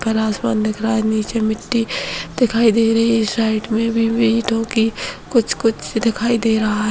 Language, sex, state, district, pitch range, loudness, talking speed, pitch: Hindi, female, Bihar, Samastipur, 220-230 Hz, -18 LUFS, 180 wpm, 225 Hz